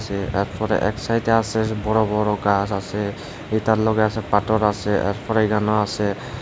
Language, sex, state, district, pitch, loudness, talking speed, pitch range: Bengali, male, Tripura, West Tripura, 105 Hz, -21 LUFS, 170 wpm, 105-110 Hz